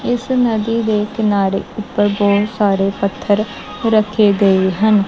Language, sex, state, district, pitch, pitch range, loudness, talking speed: Punjabi, male, Punjab, Kapurthala, 210 Hz, 200-220 Hz, -16 LUFS, 130 wpm